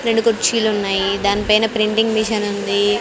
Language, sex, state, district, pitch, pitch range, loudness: Telugu, female, Andhra Pradesh, Sri Satya Sai, 215 Hz, 200-225 Hz, -17 LUFS